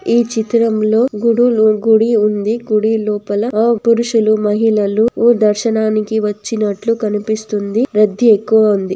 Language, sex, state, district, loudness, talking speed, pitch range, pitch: Telugu, female, Andhra Pradesh, Anantapur, -14 LUFS, 115 wpm, 210-230 Hz, 220 Hz